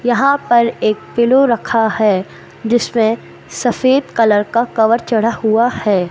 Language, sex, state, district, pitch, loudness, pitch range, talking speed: Hindi, male, Madhya Pradesh, Katni, 230 Hz, -14 LUFS, 220-240 Hz, 135 wpm